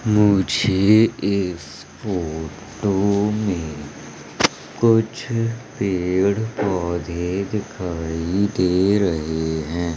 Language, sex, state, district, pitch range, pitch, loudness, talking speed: Hindi, male, Madhya Pradesh, Umaria, 85-105 Hz, 95 Hz, -21 LUFS, 65 wpm